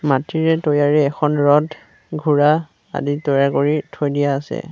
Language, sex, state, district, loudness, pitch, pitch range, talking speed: Assamese, male, Assam, Sonitpur, -18 LUFS, 145 Hz, 145-155 Hz, 140 wpm